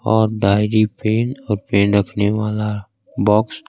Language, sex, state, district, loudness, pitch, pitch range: Hindi, male, Bihar, Kaimur, -18 LUFS, 105 Hz, 105-110 Hz